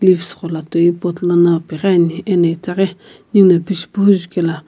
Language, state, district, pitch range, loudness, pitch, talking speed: Sumi, Nagaland, Kohima, 170-190 Hz, -15 LUFS, 175 Hz, 140 wpm